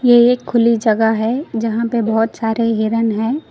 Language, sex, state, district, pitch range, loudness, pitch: Hindi, female, Karnataka, Koppal, 225-240 Hz, -16 LUFS, 230 Hz